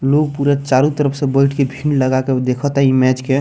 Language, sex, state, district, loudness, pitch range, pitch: Bhojpuri, male, Bihar, Muzaffarpur, -15 LUFS, 130-145 Hz, 135 Hz